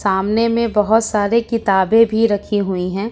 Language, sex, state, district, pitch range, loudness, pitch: Hindi, female, Uttar Pradesh, Lucknow, 200-230 Hz, -16 LUFS, 210 Hz